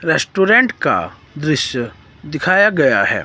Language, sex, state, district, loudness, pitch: Hindi, male, Himachal Pradesh, Shimla, -15 LUFS, 150 Hz